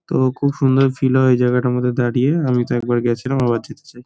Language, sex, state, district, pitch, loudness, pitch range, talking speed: Bengali, male, West Bengal, Kolkata, 125 Hz, -17 LUFS, 125-135 Hz, 220 wpm